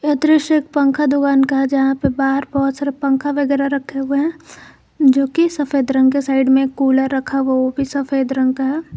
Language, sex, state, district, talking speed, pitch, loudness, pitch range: Hindi, female, Jharkhand, Garhwa, 225 wpm, 275 Hz, -16 LUFS, 270-285 Hz